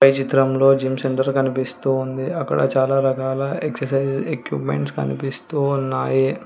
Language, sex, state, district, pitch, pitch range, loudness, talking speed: Telugu, female, Telangana, Hyderabad, 135 Hz, 130-135 Hz, -20 LUFS, 120 wpm